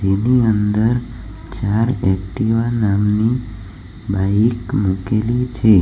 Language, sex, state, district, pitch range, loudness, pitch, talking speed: Gujarati, male, Gujarat, Valsad, 100-120 Hz, -17 LUFS, 110 Hz, 80 wpm